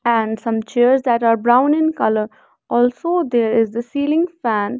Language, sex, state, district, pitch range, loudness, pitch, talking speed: English, female, Haryana, Rohtak, 225-280 Hz, -17 LUFS, 240 Hz, 175 wpm